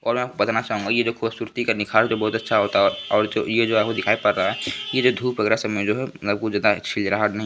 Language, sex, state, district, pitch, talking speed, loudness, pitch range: Hindi, male, Bihar, Begusarai, 110 Hz, 195 wpm, -21 LUFS, 105-115 Hz